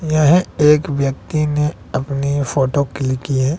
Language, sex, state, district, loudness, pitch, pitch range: Hindi, male, Bihar, West Champaran, -17 LUFS, 140 Hz, 135-150 Hz